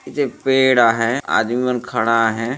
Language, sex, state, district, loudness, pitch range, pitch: Hindi, male, Chhattisgarh, Balrampur, -17 LUFS, 115-130 Hz, 120 Hz